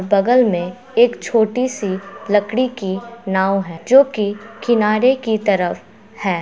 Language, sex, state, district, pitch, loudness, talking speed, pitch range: Hindi, female, Bihar, Gopalganj, 210 Hz, -17 LUFS, 130 wpm, 195-240 Hz